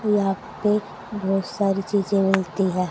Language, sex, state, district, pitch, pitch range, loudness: Hindi, female, Haryana, Jhajjar, 195 Hz, 195-205 Hz, -23 LUFS